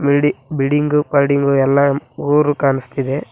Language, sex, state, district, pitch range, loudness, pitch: Kannada, male, Karnataka, Koppal, 140-145 Hz, -16 LUFS, 140 Hz